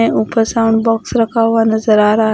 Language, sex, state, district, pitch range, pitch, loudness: Hindi, female, Odisha, Khordha, 220-230 Hz, 225 Hz, -13 LUFS